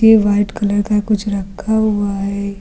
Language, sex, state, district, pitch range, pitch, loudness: Hindi, female, Uttar Pradesh, Lucknow, 200-215 Hz, 205 Hz, -16 LUFS